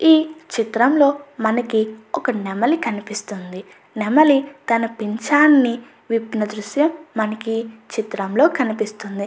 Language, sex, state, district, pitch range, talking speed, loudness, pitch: Telugu, female, Andhra Pradesh, Anantapur, 215-285 Hz, 95 wpm, -19 LUFS, 230 Hz